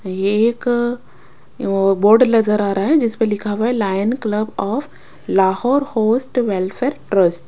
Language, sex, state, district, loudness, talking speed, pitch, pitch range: Hindi, female, Punjab, Kapurthala, -17 LUFS, 160 wpm, 215 Hz, 195-240 Hz